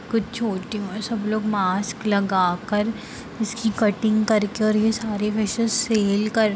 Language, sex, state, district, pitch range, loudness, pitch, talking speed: Hindi, female, Bihar, Darbhanga, 205-220 Hz, -22 LUFS, 215 Hz, 185 wpm